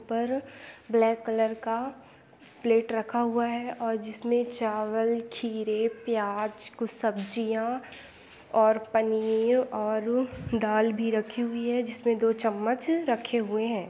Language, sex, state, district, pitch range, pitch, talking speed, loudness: Hindi, female, Bihar, Saran, 220-240 Hz, 230 Hz, 125 wpm, -28 LUFS